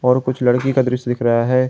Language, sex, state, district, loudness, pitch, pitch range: Hindi, male, Jharkhand, Garhwa, -17 LUFS, 125 Hz, 125-130 Hz